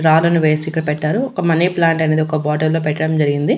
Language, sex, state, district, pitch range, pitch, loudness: Telugu, female, Andhra Pradesh, Annamaya, 155-165 Hz, 155 Hz, -16 LUFS